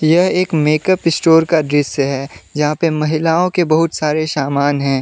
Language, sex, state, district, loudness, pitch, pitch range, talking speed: Hindi, male, Jharkhand, Deoghar, -15 LUFS, 155 Hz, 145-165 Hz, 180 wpm